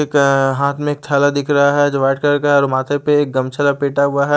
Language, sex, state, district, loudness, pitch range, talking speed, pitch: Hindi, male, Chandigarh, Chandigarh, -15 LUFS, 140-145 Hz, 290 wpm, 140 Hz